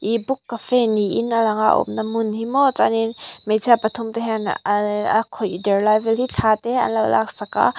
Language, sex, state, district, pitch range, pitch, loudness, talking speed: Mizo, female, Mizoram, Aizawl, 215-235 Hz, 225 Hz, -20 LUFS, 225 wpm